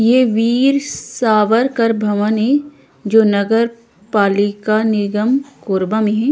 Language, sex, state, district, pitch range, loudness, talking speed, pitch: Chhattisgarhi, female, Chhattisgarh, Korba, 210-235 Hz, -15 LUFS, 115 wpm, 225 Hz